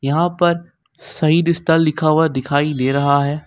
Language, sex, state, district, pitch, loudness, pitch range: Hindi, male, Jharkhand, Ranchi, 155 Hz, -17 LUFS, 140-170 Hz